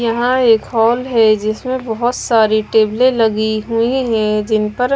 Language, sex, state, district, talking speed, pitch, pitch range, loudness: Hindi, female, Bihar, West Champaran, 155 wpm, 225 Hz, 215-245 Hz, -15 LUFS